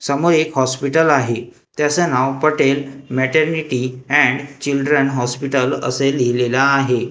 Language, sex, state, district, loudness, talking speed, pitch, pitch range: Marathi, male, Maharashtra, Gondia, -17 LUFS, 120 wpm, 135 Hz, 125-145 Hz